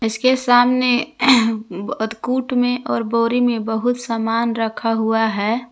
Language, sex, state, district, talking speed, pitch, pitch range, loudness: Hindi, female, Jharkhand, Garhwa, 135 wpm, 230 Hz, 225-245 Hz, -18 LUFS